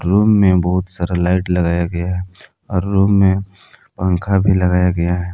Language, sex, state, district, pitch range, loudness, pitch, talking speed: Hindi, male, Jharkhand, Palamu, 90-95 Hz, -16 LUFS, 90 Hz, 180 wpm